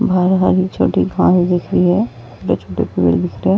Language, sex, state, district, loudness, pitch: Hindi, female, Uttar Pradesh, Varanasi, -15 LUFS, 175 Hz